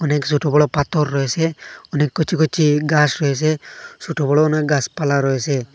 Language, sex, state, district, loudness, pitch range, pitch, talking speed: Bengali, male, Assam, Hailakandi, -18 LUFS, 145-155 Hz, 150 Hz, 155 wpm